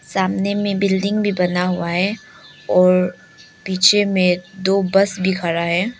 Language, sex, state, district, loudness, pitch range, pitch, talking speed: Hindi, female, Arunachal Pradesh, Lower Dibang Valley, -18 LUFS, 180-195 Hz, 190 Hz, 150 wpm